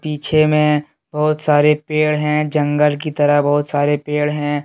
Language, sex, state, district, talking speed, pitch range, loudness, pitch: Hindi, male, Jharkhand, Deoghar, 170 wpm, 145-150 Hz, -16 LUFS, 150 Hz